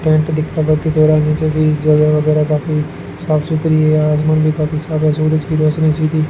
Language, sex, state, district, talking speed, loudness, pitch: Hindi, male, Rajasthan, Bikaner, 170 wpm, -14 LUFS, 155 Hz